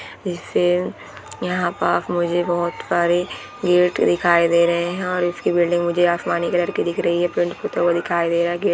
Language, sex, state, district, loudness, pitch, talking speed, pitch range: Hindi, female, Goa, North and South Goa, -20 LUFS, 175 Hz, 185 wpm, 170-175 Hz